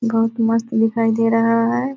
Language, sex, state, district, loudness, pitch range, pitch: Hindi, female, Bihar, Purnia, -17 LUFS, 225-230 Hz, 230 Hz